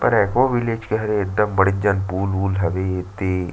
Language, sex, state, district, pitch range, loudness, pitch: Chhattisgarhi, male, Chhattisgarh, Sarguja, 95-105 Hz, -20 LUFS, 100 Hz